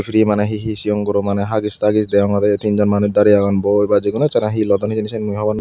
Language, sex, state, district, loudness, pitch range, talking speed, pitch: Chakma, male, Tripura, Dhalai, -16 LUFS, 100-105 Hz, 255 wpm, 105 Hz